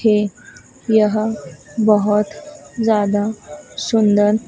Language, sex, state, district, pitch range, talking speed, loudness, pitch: Hindi, female, Madhya Pradesh, Dhar, 205-220 Hz, 65 wpm, -17 LUFS, 210 Hz